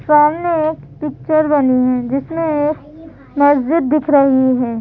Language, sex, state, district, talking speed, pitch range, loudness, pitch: Hindi, female, Madhya Pradesh, Bhopal, 135 wpm, 275-310 Hz, -15 LUFS, 295 Hz